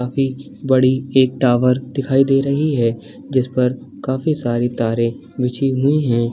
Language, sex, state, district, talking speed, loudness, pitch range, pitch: Hindi, male, Chhattisgarh, Balrampur, 150 wpm, -18 LUFS, 125-135 Hz, 130 Hz